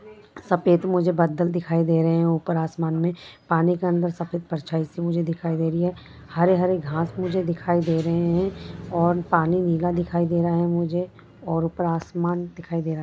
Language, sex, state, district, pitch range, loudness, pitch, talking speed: Hindi, female, Bihar, Jamui, 165-175 Hz, -23 LUFS, 170 Hz, 195 wpm